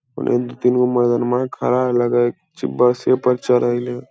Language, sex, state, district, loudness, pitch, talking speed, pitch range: Hindi, male, Bihar, Lakhisarai, -18 LUFS, 125 Hz, 160 wpm, 120-125 Hz